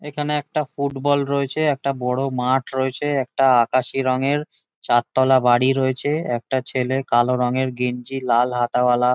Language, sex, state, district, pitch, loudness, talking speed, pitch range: Bengali, male, West Bengal, Jalpaiguri, 130 Hz, -20 LUFS, 140 wpm, 125-140 Hz